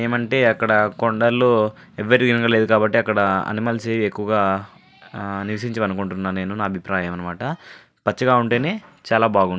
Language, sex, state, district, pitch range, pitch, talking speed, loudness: Telugu, male, Andhra Pradesh, Anantapur, 100-120 Hz, 110 Hz, 110 wpm, -20 LUFS